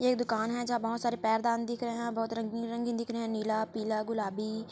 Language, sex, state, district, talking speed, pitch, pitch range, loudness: Hindi, female, Chhattisgarh, Kabirdham, 255 wpm, 230 Hz, 220-235 Hz, -32 LUFS